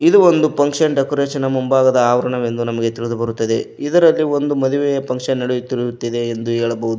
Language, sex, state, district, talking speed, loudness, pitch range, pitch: Kannada, male, Karnataka, Koppal, 135 wpm, -17 LUFS, 115-145 Hz, 125 Hz